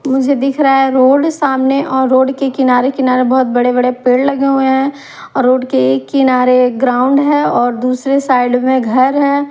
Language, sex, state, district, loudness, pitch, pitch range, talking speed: Hindi, female, Punjab, Kapurthala, -12 LUFS, 265 Hz, 250-275 Hz, 175 wpm